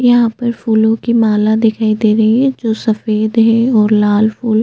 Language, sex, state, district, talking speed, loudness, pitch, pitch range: Hindi, female, Chhattisgarh, Jashpur, 205 wpm, -12 LUFS, 220 Hz, 215-230 Hz